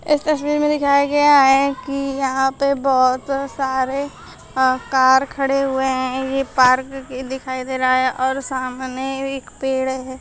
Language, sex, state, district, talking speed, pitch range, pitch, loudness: Hindi, female, Uttar Pradesh, Shamli, 165 wpm, 260-275 Hz, 265 Hz, -18 LUFS